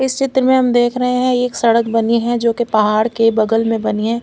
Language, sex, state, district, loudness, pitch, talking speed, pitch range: Hindi, female, Chandigarh, Chandigarh, -15 LUFS, 235 Hz, 285 wpm, 225-250 Hz